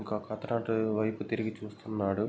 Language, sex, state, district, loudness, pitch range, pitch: Telugu, male, Andhra Pradesh, Guntur, -33 LUFS, 105-110 Hz, 110 Hz